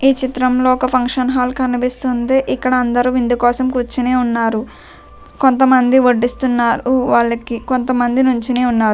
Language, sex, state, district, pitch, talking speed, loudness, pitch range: Telugu, female, Telangana, Nalgonda, 250 Hz, 120 wpm, -15 LUFS, 245-255 Hz